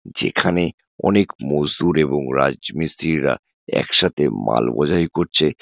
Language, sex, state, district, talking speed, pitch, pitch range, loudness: Bengali, male, West Bengal, Jalpaiguri, 115 wpm, 80 Hz, 75-85 Hz, -19 LUFS